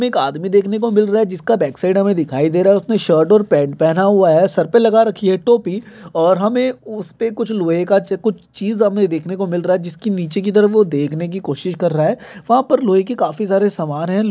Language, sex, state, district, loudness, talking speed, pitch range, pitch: Hindi, male, Chhattisgarh, Kabirdham, -16 LUFS, 255 wpm, 175-215 Hz, 195 Hz